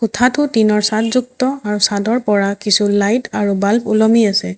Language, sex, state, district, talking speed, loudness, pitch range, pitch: Assamese, female, Assam, Sonitpur, 170 wpm, -15 LUFS, 205-235 Hz, 215 Hz